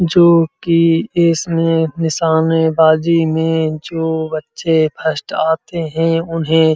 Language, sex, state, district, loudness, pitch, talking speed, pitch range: Hindi, male, Uttar Pradesh, Muzaffarnagar, -15 LUFS, 165 Hz, 95 wpm, 160-165 Hz